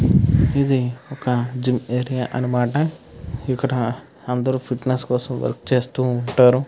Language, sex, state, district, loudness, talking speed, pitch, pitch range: Telugu, male, Andhra Pradesh, Krishna, -21 LUFS, 110 wpm, 125 Hz, 125-130 Hz